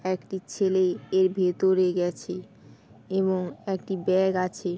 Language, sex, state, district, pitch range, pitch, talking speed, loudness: Bengali, female, West Bengal, Paschim Medinipur, 180-190 Hz, 185 Hz, 115 wpm, -26 LUFS